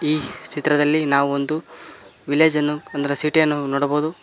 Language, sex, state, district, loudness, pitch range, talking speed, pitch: Kannada, male, Karnataka, Koppal, -19 LUFS, 140-155 Hz, 115 wpm, 150 Hz